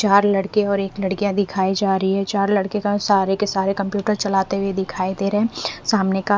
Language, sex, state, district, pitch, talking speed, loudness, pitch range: Hindi, female, Haryana, Rohtak, 200 Hz, 225 wpm, -20 LUFS, 195-205 Hz